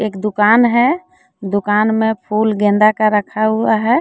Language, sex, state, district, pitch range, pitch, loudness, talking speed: Hindi, female, Jharkhand, Deoghar, 210-225 Hz, 215 Hz, -14 LUFS, 165 wpm